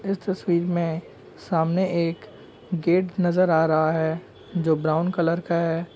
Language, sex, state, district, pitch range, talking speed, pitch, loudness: Hindi, male, Bihar, Saran, 160-180 Hz, 150 wpm, 170 Hz, -23 LUFS